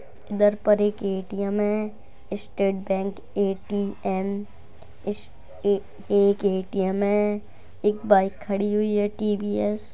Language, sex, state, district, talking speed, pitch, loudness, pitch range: Hindi, female, Uttar Pradesh, Jalaun, 115 wpm, 200 Hz, -25 LUFS, 195-205 Hz